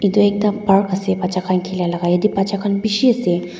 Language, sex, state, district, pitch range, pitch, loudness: Nagamese, female, Nagaland, Dimapur, 180-205 Hz, 195 Hz, -17 LUFS